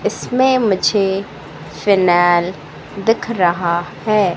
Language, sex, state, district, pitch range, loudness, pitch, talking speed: Hindi, female, Madhya Pradesh, Katni, 170-210 Hz, -16 LUFS, 185 Hz, 80 wpm